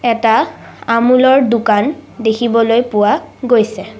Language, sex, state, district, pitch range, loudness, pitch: Assamese, female, Assam, Sonitpur, 220-255 Hz, -13 LUFS, 235 Hz